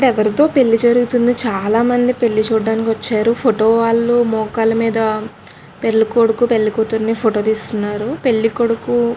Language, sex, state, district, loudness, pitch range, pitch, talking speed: Telugu, female, Andhra Pradesh, Krishna, -15 LUFS, 220-240 Hz, 230 Hz, 140 wpm